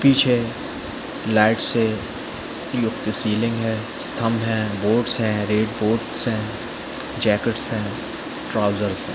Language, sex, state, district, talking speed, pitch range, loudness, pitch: Hindi, male, Chhattisgarh, Bilaspur, 110 wpm, 110-115 Hz, -22 LUFS, 110 Hz